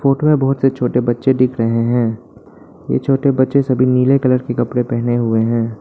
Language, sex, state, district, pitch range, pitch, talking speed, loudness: Hindi, male, Arunachal Pradesh, Lower Dibang Valley, 120-135 Hz, 125 Hz, 205 wpm, -15 LUFS